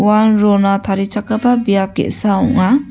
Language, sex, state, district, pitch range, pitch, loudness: Garo, female, Meghalaya, West Garo Hills, 195-230 Hz, 210 Hz, -14 LUFS